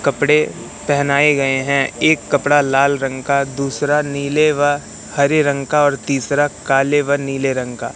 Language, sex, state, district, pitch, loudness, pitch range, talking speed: Hindi, male, Madhya Pradesh, Katni, 140 Hz, -16 LUFS, 135-145 Hz, 165 wpm